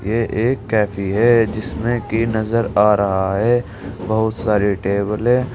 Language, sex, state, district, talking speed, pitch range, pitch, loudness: Hindi, male, Uttar Pradesh, Saharanpur, 150 wpm, 100-115 Hz, 110 Hz, -18 LUFS